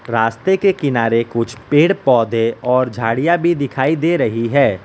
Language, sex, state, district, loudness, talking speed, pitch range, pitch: Hindi, male, Gujarat, Valsad, -16 LUFS, 160 wpm, 115-155 Hz, 125 Hz